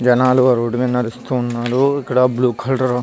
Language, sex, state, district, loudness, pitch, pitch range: Telugu, male, Andhra Pradesh, Visakhapatnam, -17 LUFS, 125 Hz, 125-130 Hz